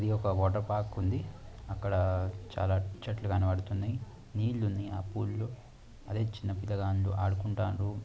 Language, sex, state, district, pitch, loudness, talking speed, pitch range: Telugu, male, Andhra Pradesh, Anantapur, 100 Hz, -33 LUFS, 95 wpm, 95-110 Hz